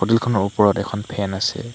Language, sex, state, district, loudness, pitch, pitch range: Assamese, male, Assam, Hailakandi, -20 LUFS, 105 Hz, 100-115 Hz